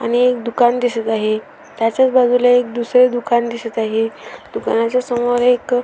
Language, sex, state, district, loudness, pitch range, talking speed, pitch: Marathi, female, Maharashtra, Sindhudurg, -16 LUFS, 230-245 Hz, 165 wpm, 240 Hz